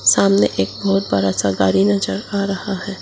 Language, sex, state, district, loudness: Hindi, female, Arunachal Pradesh, Lower Dibang Valley, -18 LUFS